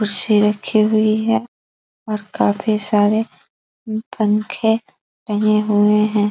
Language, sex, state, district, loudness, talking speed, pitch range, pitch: Hindi, female, Bihar, East Champaran, -17 LUFS, 115 wpm, 210-220 Hz, 215 Hz